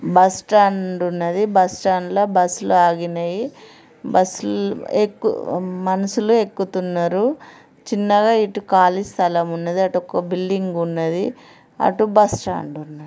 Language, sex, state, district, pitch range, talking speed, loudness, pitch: Telugu, female, Andhra Pradesh, Srikakulam, 175-205 Hz, 115 wpm, -19 LUFS, 185 Hz